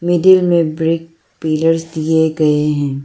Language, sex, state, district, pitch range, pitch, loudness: Hindi, female, Arunachal Pradesh, Lower Dibang Valley, 155-165 Hz, 160 Hz, -14 LUFS